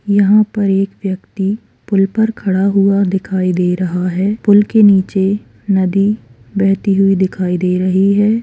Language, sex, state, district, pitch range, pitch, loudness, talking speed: Hindi, female, Bihar, Purnia, 190-205 Hz, 195 Hz, -14 LUFS, 165 wpm